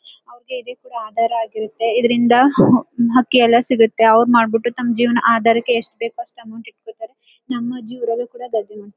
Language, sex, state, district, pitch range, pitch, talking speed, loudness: Kannada, female, Karnataka, Chamarajanagar, 230-250 Hz, 235 Hz, 115 wpm, -16 LUFS